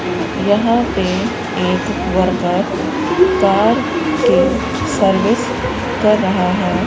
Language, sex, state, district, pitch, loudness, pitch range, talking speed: Hindi, male, Rajasthan, Bikaner, 215 Hz, -15 LUFS, 195-250 Hz, 85 wpm